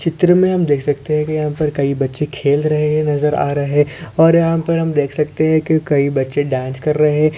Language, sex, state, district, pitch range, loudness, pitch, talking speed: Hindi, male, Maharashtra, Sindhudurg, 145-160 Hz, -16 LUFS, 150 Hz, 250 wpm